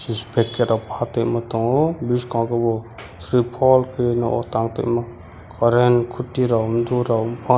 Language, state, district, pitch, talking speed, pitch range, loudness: Kokborok, Tripura, West Tripura, 120 Hz, 135 wpm, 115-125 Hz, -20 LUFS